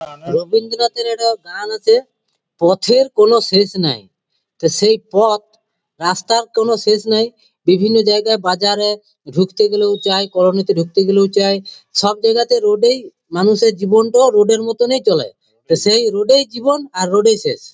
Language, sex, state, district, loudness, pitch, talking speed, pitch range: Bengali, male, West Bengal, Purulia, -14 LUFS, 215 Hz, 160 wpm, 195-235 Hz